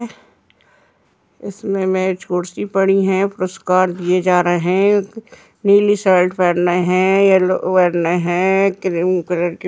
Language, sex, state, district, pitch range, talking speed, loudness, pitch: Hindi, female, Uttar Pradesh, Jyotiba Phule Nagar, 180-195 Hz, 150 wpm, -16 LUFS, 185 Hz